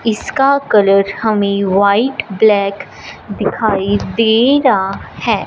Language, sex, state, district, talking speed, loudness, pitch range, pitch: Hindi, female, Punjab, Fazilka, 100 wpm, -13 LUFS, 200-245 Hz, 215 Hz